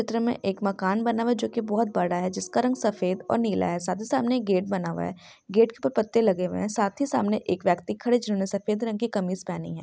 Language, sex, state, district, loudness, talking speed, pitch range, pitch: Hindi, female, Maharashtra, Pune, -26 LUFS, 270 wpm, 185-230 Hz, 205 Hz